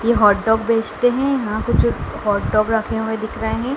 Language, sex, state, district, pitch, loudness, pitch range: Hindi, female, Madhya Pradesh, Dhar, 225 Hz, -19 LUFS, 215-235 Hz